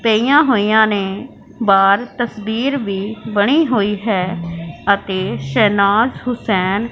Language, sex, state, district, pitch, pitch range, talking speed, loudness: Hindi, female, Punjab, Pathankot, 205 Hz, 195-230 Hz, 105 wpm, -16 LUFS